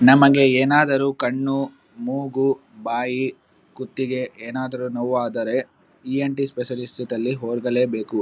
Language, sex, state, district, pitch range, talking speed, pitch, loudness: Kannada, male, Karnataka, Bellary, 125-135 Hz, 95 wpm, 130 Hz, -22 LUFS